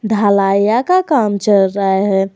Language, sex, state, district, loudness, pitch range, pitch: Hindi, female, Jharkhand, Garhwa, -13 LUFS, 195-220 Hz, 200 Hz